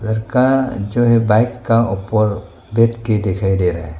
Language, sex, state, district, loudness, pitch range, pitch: Hindi, male, Arunachal Pradesh, Longding, -16 LUFS, 95-115 Hz, 110 Hz